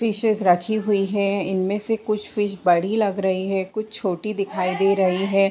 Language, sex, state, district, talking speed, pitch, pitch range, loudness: Hindi, female, Uttar Pradesh, Varanasi, 195 wpm, 200 Hz, 190-215 Hz, -22 LUFS